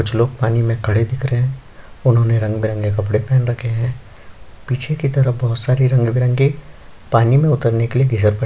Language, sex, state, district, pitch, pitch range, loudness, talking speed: Hindi, male, Chhattisgarh, Sukma, 120 Hz, 110-130 Hz, -17 LUFS, 185 wpm